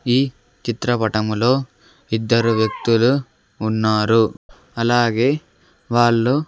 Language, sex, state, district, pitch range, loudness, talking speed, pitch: Telugu, male, Andhra Pradesh, Sri Satya Sai, 110-125 Hz, -19 LUFS, 65 wpm, 115 Hz